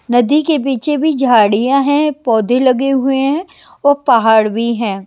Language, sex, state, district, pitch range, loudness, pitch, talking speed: Hindi, female, Haryana, Jhajjar, 230-285 Hz, -13 LUFS, 265 Hz, 165 wpm